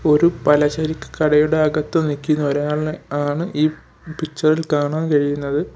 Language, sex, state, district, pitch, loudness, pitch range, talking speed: Malayalam, male, Kerala, Kollam, 155 Hz, -19 LUFS, 145-155 Hz, 125 wpm